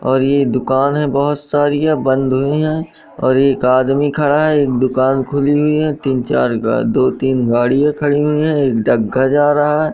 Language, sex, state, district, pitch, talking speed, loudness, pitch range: Hindi, male, Madhya Pradesh, Katni, 140 Hz, 200 wpm, -15 LUFS, 130-150 Hz